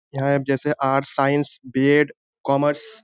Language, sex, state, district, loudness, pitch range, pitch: Hindi, male, Jharkhand, Sahebganj, -21 LUFS, 135-150 Hz, 140 Hz